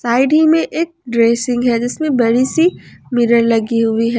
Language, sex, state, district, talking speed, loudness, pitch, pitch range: Hindi, female, Jharkhand, Ranchi, 185 wpm, -14 LUFS, 240 Hz, 230-305 Hz